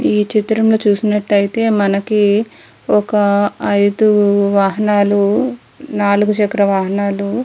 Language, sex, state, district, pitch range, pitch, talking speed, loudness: Telugu, female, Andhra Pradesh, Guntur, 200-215 Hz, 205 Hz, 105 wpm, -14 LUFS